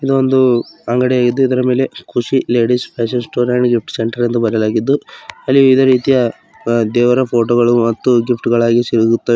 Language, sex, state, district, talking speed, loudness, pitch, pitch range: Kannada, male, Karnataka, Bidar, 155 wpm, -14 LUFS, 120 Hz, 115-130 Hz